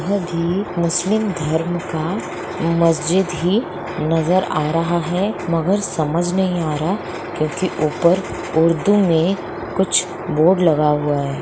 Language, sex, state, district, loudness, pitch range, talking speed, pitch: Hindi, female, Bihar, Muzaffarpur, -19 LUFS, 160-185 Hz, 125 wpm, 175 Hz